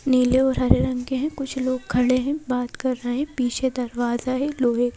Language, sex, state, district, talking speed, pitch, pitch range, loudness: Hindi, female, Madhya Pradesh, Bhopal, 215 wpm, 255 Hz, 245-265 Hz, -23 LUFS